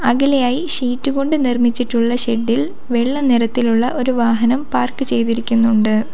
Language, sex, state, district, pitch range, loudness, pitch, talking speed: Malayalam, female, Kerala, Kollam, 235-265 Hz, -16 LUFS, 245 Hz, 115 wpm